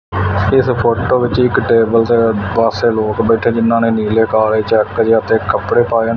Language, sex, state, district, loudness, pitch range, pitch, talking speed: Punjabi, male, Punjab, Fazilka, -13 LUFS, 110-115 Hz, 115 Hz, 175 wpm